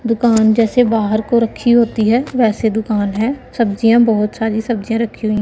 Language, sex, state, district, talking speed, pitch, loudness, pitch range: Hindi, female, Punjab, Pathankot, 175 wpm, 225 Hz, -15 LUFS, 220-235 Hz